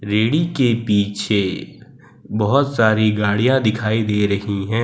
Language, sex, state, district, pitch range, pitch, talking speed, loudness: Hindi, male, Gujarat, Valsad, 105-115 Hz, 110 Hz, 125 wpm, -18 LUFS